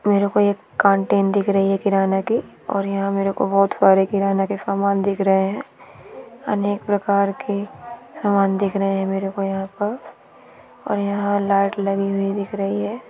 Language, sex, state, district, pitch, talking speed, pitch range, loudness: Hindi, female, Chhattisgarh, Bilaspur, 200 Hz, 180 wpm, 195-205 Hz, -20 LUFS